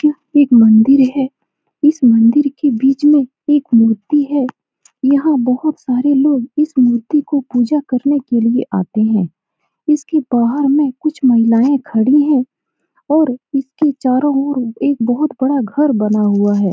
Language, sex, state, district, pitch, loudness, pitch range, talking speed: Hindi, female, Bihar, Saran, 270 Hz, -14 LUFS, 240-290 Hz, 150 wpm